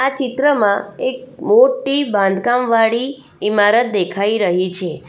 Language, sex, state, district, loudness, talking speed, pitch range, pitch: Gujarati, female, Gujarat, Valsad, -16 LUFS, 105 wpm, 205-265 Hz, 235 Hz